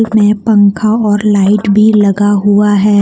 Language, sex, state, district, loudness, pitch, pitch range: Hindi, female, Jharkhand, Deoghar, -9 LUFS, 205 Hz, 205-215 Hz